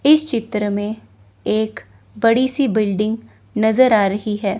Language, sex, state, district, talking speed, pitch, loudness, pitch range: Hindi, female, Chandigarh, Chandigarh, 145 wpm, 215 Hz, -18 LUFS, 205-230 Hz